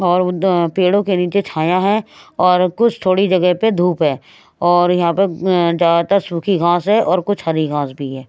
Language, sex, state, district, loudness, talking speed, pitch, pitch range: Hindi, female, Haryana, Rohtak, -15 LUFS, 190 wpm, 180 Hz, 170-195 Hz